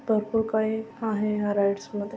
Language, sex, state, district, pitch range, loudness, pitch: Marathi, female, Maharashtra, Sindhudurg, 205-220 Hz, -26 LUFS, 215 Hz